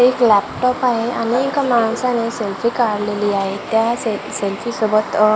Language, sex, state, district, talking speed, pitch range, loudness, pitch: Marathi, female, Maharashtra, Gondia, 170 wpm, 210-240 Hz, -18 LUFS, 230 Hz